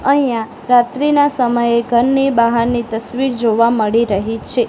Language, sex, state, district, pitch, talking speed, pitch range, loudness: Gujarati, female, Gujarat, Gandhinagar, 235 Hz, 130 wpm, 230-255 Hz, -15 LUFS